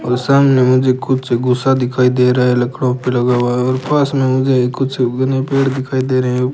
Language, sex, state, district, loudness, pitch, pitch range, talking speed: Hindi, male, Rajasthan, Bikaner, -14 LUFS, 130 Hz, 125-130 Hz, 220 wpm